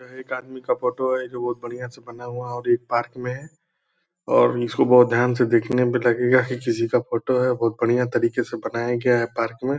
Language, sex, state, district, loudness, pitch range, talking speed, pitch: Hindi, male, Bihar, Purnia, -22 LUFS, 120-125 Hz, 245 wpm, 125 Hz